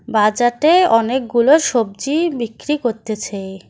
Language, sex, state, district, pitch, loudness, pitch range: Bengali, female, West Bengal, Cooch Behar, 240 Hz, -16 LUFS, 220-295 Hz